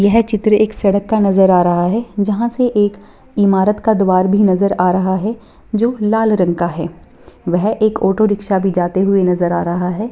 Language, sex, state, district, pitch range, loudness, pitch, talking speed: Hindi, female, Bihar, Purnia, 185-215 Hz, -15 LUFS, 200 Hz, 215 wpm